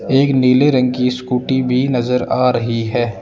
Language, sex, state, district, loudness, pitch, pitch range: Hindi, male, Rajasthan, Jaipur, -15 LUFS, 125 Hz, 125-130 Hz